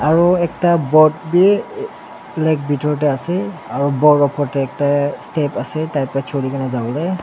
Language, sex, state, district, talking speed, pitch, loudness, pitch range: Nagamese, male, Nagaland, Dimapur, 180 wpm, 150 Hz, -17 LUFS, 140-170 Hz